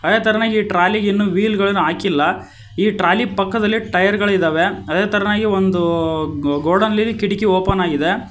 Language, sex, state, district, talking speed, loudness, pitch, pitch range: Kannada, male, Karnataka, Koppal, 160 wpm, -17 LUFS, 195 Hz, 175-210 Hz